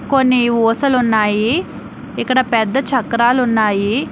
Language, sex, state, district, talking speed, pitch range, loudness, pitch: Telugu, female, Telangana, Hyderabad, 100 wpm, 220-260 Hz, -15 LUFS, 240 Hz